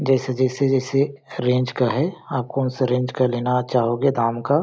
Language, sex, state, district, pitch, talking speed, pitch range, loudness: Hindi, male, Chhattisgarh, Balrampur, 130 Hz, 205 wpm, 125-135 Hz, -21 LUFS